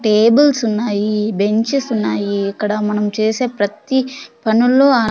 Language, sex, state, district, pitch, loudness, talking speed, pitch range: Telugu, female, Andhra Pradesh, Sri Satya Sai, 220 Hz, -16 LUFS, 130 wpm, 210-250 Hz